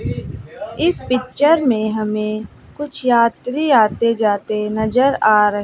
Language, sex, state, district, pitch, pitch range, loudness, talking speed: Hindi, female, Bihar, West Champaran, 230 Hz, 215-270 Hz, -17 LUFS, 115 wpm